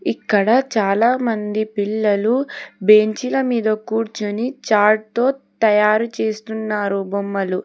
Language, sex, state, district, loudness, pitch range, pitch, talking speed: Telugu, female, Telangana, Hyderabad, -18 LUFS, 210-235 Hz, 215 Hz, 95 wpm